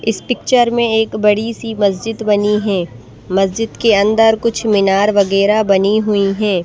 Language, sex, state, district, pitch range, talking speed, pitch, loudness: Hindi, female, Madhya Pradesh, Bhopal, 195-225 Hz, 155 wpm, 210 Hz, -14 LUFS